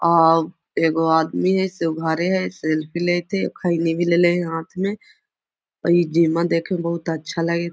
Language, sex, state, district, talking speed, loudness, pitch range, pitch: Magahi, female, Bihar, Gaya, 180 wpm, -20 LUFS, 165-175 Hz, 170 Hz